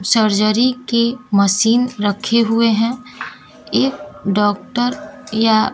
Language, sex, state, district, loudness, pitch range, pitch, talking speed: Hindi, female, Bihar, West Champaran, -16 LUFS, 210-245 Hz, 230 Hz, 95 wpm